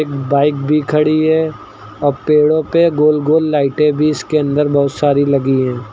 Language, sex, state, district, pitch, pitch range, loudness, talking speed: Hindi, male, Uttar Pradesh, Lucknow, 150 Hz, 140-155 Hz, -14 LUFS, 170 wpm